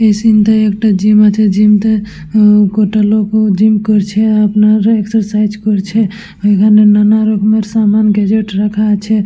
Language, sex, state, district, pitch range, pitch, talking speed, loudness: Bengali, female, West Bengal, Purulia, 210-215 Hz, 210 Hz, 145 wpm, -10 LUFS